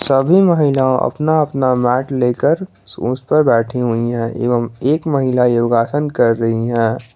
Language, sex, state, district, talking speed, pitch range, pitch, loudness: Hindi, male, Jharkhand, Garhwa, 150 wpm, 120-145 Hz, 125 Hz, -15 LUFS